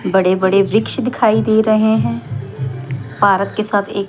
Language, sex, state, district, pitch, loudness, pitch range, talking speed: Hindi, female, Chandigarh, Chandigarh, 195 Hz, -15 LUFS, 130-215 Hz, 160 wpm